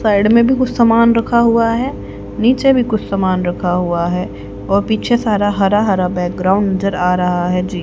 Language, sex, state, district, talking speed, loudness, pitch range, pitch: Hindi, female, Haryana, Rohtak, 200 wpm, -14 LUFS, 180-230 Hz, 200 Hz